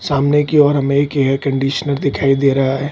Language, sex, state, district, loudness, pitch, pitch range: Hindi, male, Bihar, Kishanganj, -15 LUFS, 140 Hz, 135-145 Hz